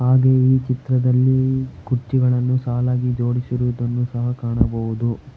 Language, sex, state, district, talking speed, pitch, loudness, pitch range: Kannada, male, Karnataka, Bangalore, 90 wpm, 125 Hz, -19 LUFS, 120-130 Hz